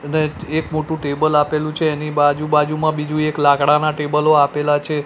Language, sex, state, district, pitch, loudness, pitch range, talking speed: Gujarati, male, Gujarat, Gandhinagar, 150 Hz, -17 LUFS, 150-155 Hz, 180 wpm